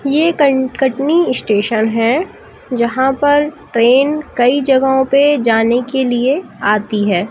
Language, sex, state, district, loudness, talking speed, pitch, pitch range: Hindi, female, Madhya Pradesh, Katni, -14 LUFS, 125 wpm, 260 Hz, 230-285 Hz